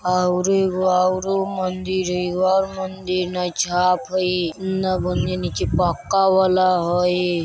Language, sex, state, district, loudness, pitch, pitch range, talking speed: Bajjika, male, Bihar, Vaishali, -20 LUFS, 185 Hz, 180-190 Hz, 95 wpm